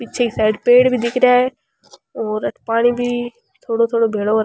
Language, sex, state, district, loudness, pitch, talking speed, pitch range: Rajasthani, female, Rajasthan, Churu, -17 LUFS, 235 Hz, 200 wpm, 225-245 Hz